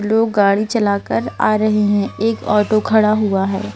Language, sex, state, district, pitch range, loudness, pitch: Hindi, female, Madhya Pradesh, Bhopal, 200-215 Hz, -16 LUFS, 210 Hz